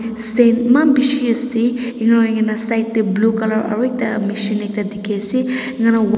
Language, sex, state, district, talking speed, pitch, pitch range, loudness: Nagamese, female, Nagaland, Dimapur, 145 wpm, 225 Hz, 220-245 Hz, -17 LUFS